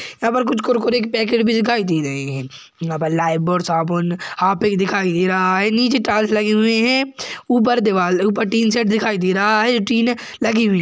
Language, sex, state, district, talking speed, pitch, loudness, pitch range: Hindi, male, Uttarakhand, Tehri Garhwal, 215 wpm, 215 Hz, -17 LUFS, 180-235 Hz